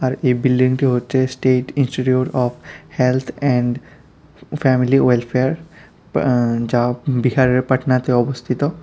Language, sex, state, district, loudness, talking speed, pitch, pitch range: Bengali, male, Tripura, West Tripura, -18 LUFS, 100 wpm, 130 Hz, 125-135 Hz